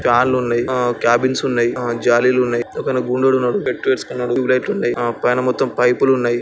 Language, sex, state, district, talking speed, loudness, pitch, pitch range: Telugu, male, Andhra Pradesh, Srikakulam, 170 wpm, -17 LUFS, 125 Hz, 120-130 Hz